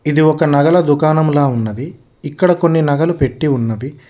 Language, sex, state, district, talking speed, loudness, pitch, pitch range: Telugu, male, Telangana, Hyderabad, 145 wpm, -14 LUFS, 150 Hz, 135-155 Hz